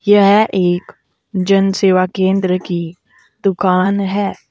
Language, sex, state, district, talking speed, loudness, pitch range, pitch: Hindi, female, Uttar Pradesh, Saharanpur, 105 wpm, -15 LUFS, 185-195 Hz, 190 Hz